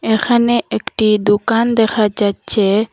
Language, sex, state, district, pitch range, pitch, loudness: Bengali, female, Assam, Hailakandi, 205-230 Hz, 220 Hz, -15 LUFS